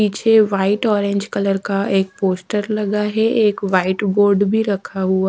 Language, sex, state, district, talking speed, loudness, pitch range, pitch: Hindi, female, Odisha, Sambalpur, 170 wpm, -17 LUFS, 195-210 Hz, 200 Hz